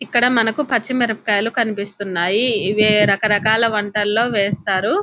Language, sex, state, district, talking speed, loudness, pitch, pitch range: Telugu, female, Telangana, Nalgonda, 95 wpm, -17 LUFS, 215 Hz, 205-235 Hz